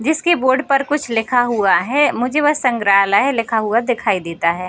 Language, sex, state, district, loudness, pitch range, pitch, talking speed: Hindi, female, Bihar, Darbhanga, -16 LUFS, 205-275 Hz, 240 Hz, 190 wpm